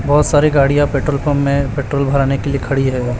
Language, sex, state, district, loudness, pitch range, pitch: Hindi, male, Chhattisgarh, Raipur, -15 LUFS, 135-145 Hz, 140 Hz